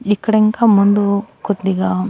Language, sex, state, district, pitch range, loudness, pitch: Telugu, female, Andhra Pradesh, Annamaya, 200-215 Hz, -15 LUFS, 205 Hz